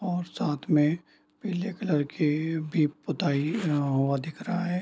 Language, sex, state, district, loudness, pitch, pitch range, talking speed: Hindi, male, Bihar, Darbhanga, -28 LUFS, 155 Hz, 150-180 Hz, 150 wpm